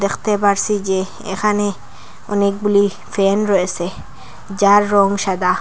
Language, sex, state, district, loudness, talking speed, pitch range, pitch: Bengali, female, Assam, Hailakandi, -17 LUFS, 105 wpm, 195-205 Hz, 200 Hz